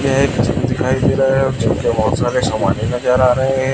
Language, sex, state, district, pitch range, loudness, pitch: Hindi, male, Chhattisgarh, Raipur, 120-135 Hz, -16 LUFS, 125 Hz